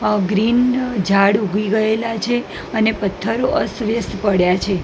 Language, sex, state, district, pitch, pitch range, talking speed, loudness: Gujarati, female, Gujarat, Gandhinagar, 215 Hz, 200-230 Hz, 135 wpm, -18 LUFS